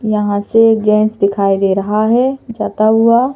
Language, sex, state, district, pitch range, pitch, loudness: Hindi, female, Madhya Pradesh, Bhopal, 205-225 Hz, 215 Hz, -13 LUFS